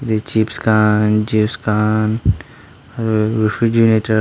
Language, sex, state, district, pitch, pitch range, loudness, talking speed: Nagamese, male, Nagaland, Dimapur, 110 Hz, 105-110 Hz, -16 LUFS, 115 wpm